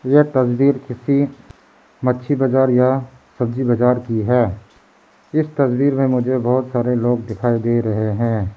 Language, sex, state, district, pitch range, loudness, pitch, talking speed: Hindi, male, Arunachal Pradesh, Lower Dibang Valley, 120-130 Hz, -18 LUFS, 125 Hz, 145 wpm